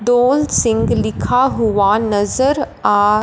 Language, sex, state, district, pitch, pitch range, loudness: Hindi, female, Punjab, Fazilka, 215 Hz, 200-255 Hz, -15 LUFS